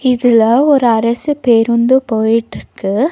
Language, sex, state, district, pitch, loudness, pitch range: Tamil, female, Tamil Nadu, Nilgiris, 235 Hz, -12 LUFS, 225-260 Hz